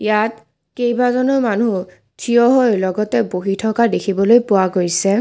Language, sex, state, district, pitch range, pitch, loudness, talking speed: Assamese, female, Assam, Kamrup Metropolitan, 195-240 Hz, 220 Hz, -16 LUFS, 115 wpm